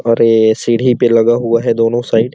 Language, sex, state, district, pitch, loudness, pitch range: Hindi, male, Chhattisgarh, Sarguja, 115 Hz, -12 LUFS, 115-120 Hz